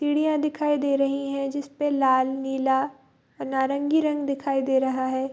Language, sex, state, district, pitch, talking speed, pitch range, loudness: Hindi, female, Bihar, Madhepura, 275 Hz, 170 wpm, 265-290 Hz, -24 LUFS